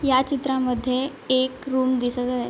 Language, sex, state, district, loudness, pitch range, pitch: Marathi, female, Maharashtra, Chandrapur, -23 LUFS, 250-265 Hz, 260 Hz